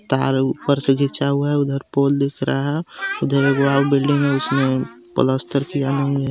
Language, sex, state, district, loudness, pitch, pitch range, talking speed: Hindi, male, Jharkhand, Garhwa, -19 LUFS, 140 Hz, 135-140 Hz, 190 wpm